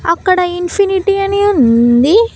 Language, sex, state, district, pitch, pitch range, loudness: Telugu, female, Andhra Pradesh, Annamaya, 370 Hz, 335-395 Hz, -12 LUFS